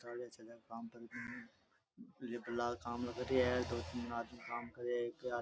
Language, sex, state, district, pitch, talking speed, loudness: Rajasthani, male, Rajasthan, Nagaur, 120 Hz, 155 wpm, -42 LUFS